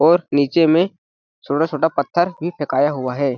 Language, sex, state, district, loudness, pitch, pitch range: Hindi, male, Chhattisgarh, Balrampur, -18 LUFS, 155 Hz, 140-170 Hz